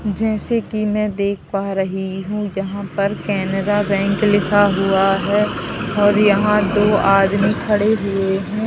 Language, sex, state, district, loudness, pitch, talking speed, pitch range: Hindi, female, Madhya Pradesh, Katni, -17 LUFS, 200 Hz, 145 wpm, 195-210 Hz